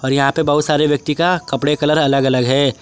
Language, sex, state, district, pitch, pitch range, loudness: Hindi, male, Jharkhand, Garhwa, 145 Hz, 135-150 Hz, -15 LUFS